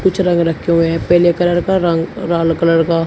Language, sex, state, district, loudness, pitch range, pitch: Hindi, male, Uttar Pradesh, Shamli, -14 LUFS, 165-175 Hz, 170 Hz